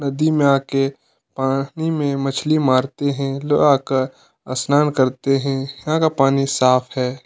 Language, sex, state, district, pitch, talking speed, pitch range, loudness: Hindi, male, Chhattisgarh, Kabirdham, 135 Hz, 150 wpm, 135-145 Hz, -19 LUFS